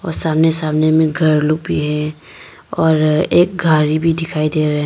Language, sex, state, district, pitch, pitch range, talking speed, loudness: Hindi, female, Arunachal Pradesh, Papum Pare, 155 Hz, 155-160 Hz, 195 wpm, -15 LUFS